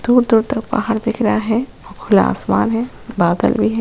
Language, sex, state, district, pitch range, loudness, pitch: Hindi, female, Goa, North and South Goa, 220-240 Hz, -17 LUFS, 225 Hz